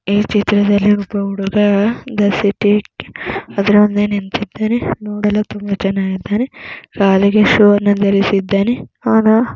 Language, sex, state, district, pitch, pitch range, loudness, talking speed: Kannada, female, Karnataka, Mysore, 205 Hz, 200-210 Hz, -14 LUFS, 120 wpm